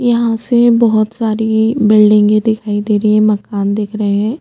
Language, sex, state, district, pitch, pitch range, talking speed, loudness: Hindi, female, Chhattisgarh, Jashpur, 215 Hz, 210-225 Hz, 175 wpm, -12 LUFS